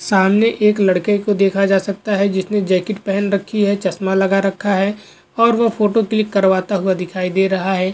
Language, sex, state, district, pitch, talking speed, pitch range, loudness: Hindi, male, Goa, North and South Goa, 195 Hz, 205 wpm, 190-205 Hz, -16 LUFS